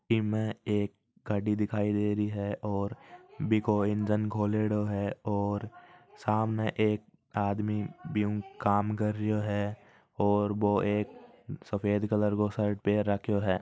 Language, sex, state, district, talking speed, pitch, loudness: Marwari, male, Rajasthan, Nagaur, 135 wpm, 105 Hz, -30 LUFS